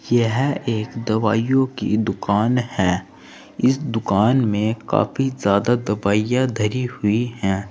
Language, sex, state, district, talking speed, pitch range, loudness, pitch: Hindi, male, Uttar Pradesh, Saharanpur, 115 wpm, 105-125 Hz, -20 LUFS, 110 Hz